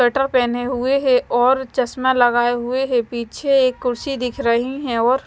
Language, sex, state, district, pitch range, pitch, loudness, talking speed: Hindi, female, Himachal Pradesh, Shimla, 240-265 Hz, 250 Hz, -18 LUFS, 180 wpm